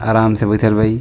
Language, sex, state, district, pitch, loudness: Bhojpuri, male, Bihar, East Champaran, 110 Hz, -15 LUFS